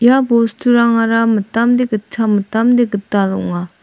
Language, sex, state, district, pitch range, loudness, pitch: Garo, female, Meghalaya, South Garo Hills, 205-240 Hz, -14 LUFS, 225 Hz